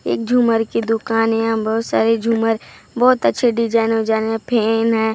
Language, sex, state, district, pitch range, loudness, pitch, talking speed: Hindi, female, Maharashtra, Gondia, 225-230 Hz, -17 LUFS, 225 Hz, 200 wpm